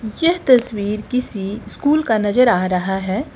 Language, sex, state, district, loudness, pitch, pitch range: Hindi, female, Uttar Pradesh, Lucknow, -18 LUFS, 220 Hz, 200-250 Hz